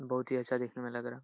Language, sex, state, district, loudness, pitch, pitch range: Hindi, male, Bihar, Jahanabad, -36 LUFS, 125 Hz, 125-130 Hz